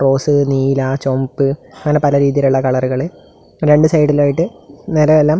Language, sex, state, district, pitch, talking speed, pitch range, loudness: Malayalam, male, Kerala, Kasaragod, 140 Hz, 100 wpm, 135-150 Hz, -14 LUFS